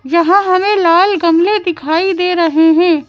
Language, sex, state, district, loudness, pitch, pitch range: Hindi, female, Madhya Pradesh, Bhopal, -11 LUFS, 345 Hz, 330-370 Hz